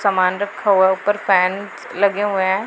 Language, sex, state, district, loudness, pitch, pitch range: Hindi, female, Punjab, Pathankot, -17 LUFS, 195 Hz, 190-205 Hz